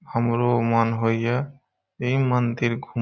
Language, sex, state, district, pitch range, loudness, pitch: Maithili, male, Bihar, Saharsa, 115-125 Hz, -23 LUFS, 120 Hz